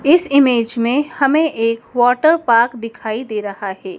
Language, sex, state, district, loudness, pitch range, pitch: Hindi, male, Madhya Pradesh, Dhar, -16 LUFS, 225-280 Hz, 235 Hz